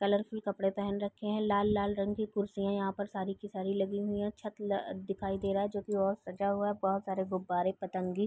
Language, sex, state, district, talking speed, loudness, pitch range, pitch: Hindi, female, Uttar Pradesh, Gorakhpur, 245 wpm, -34 LUFS, 195-205 Hz, 200 Hz